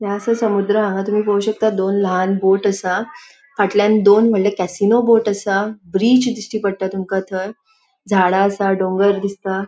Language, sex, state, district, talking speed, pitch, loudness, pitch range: Konkani, female, Goa, North and South Goa, 165 wpm, 200 Hz, -17 LUFS, 195-215 Hz